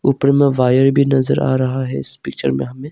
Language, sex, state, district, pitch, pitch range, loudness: Hindi, male, Arunachal Pradesh, Longding, 130 Hz, 130-140 Hz, -16 LUFS